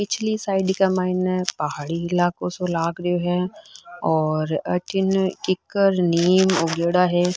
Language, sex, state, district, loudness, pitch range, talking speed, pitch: Rajasthani, female, Rajasthan, Nagaur, -21 LUFS, 170-190 Hz, 130 wpm, 180 Hz